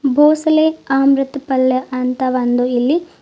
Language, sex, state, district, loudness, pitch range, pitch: Kannada, female, Karnataka, Bidar, -15 LUFS, 255-300 Hz, 270 Hz